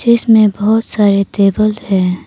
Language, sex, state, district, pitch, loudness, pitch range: Hindi, female, Arunachal Pradesh, Papum Pare, 210 Hz, -12 LUFS, 200-220 Hz